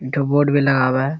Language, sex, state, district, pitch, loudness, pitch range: Hindi, male, Bihar, Kishanganj, 140 Hz, -17 LUFS, 130-145 Hz